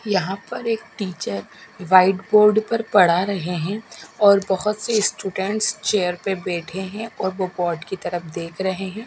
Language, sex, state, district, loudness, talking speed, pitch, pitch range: Hindi, female, Bihar, Katihar, -21 LUFS, 170 wpm, 195 Hz, 180-210 Hz